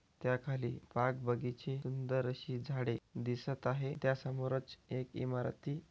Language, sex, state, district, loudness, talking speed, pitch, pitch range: Marathi, male, Maharashtra, Chandrapur, -39 LUFS, 120 wpm, 130 Hz, 125-135 Hz